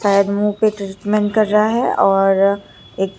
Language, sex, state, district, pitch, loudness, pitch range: Hindi, male, Bihar, Katihar, 205 Hz, -16 LUFS, 195-210 Hz